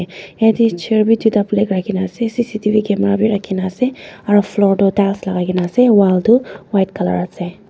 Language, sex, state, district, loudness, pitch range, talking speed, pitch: Nagamese, female, Nagaland, Dimapur, -15 LUFS, 190-220 Hz, 220 wpm, 200 Hz